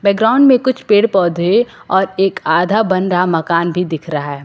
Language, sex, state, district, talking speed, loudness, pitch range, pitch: Hindi, female, Uttar Pradesh, Lucknow, 215 wpm, -14 LUFS, 170-215 Hz, 190 Hz